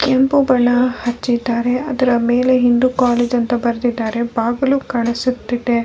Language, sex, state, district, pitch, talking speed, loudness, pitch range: Kannada, female, Karnataka, Bellary, 245 Hz, 125 wpm, -16 LUFS, 235-255 Hz